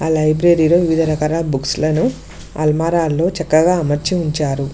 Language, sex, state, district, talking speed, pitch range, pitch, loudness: Telugu, female, Telangana, Mahabubabad, 115 wpm, 150-165 Hz, 155 Hz, -16 LUFS